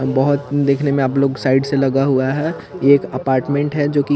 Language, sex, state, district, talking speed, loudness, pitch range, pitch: Hindi, male, Chandigarh, Chandigarh, 215 wpm, -17 LUFS, 135-145 Hz, 140 Hz